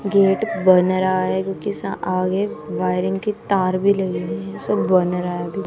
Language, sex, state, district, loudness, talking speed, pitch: Hindi, female, Punjab, Kapurthala, -20 LUFS, 150 wpm, 185 Hz